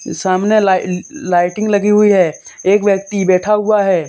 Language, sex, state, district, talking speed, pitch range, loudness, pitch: Hindi, male, Jharkhand, Deoghar, 160 wpm, 185-210 Hz, -14 LUFS, 195 Hz